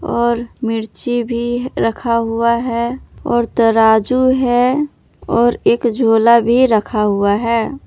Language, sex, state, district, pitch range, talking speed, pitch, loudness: Hindi, female, Jharkhand, Palamu, 225-245 Hz, 120 wpm, 235 Hz, -15 LUFS